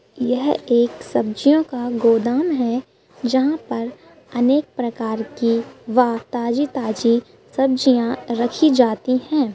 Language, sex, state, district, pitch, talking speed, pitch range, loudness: Hindi, female, Bihar, Bhagalpur, 245 Hz, 105 wpm, 235-270 Hz, -19 LUFS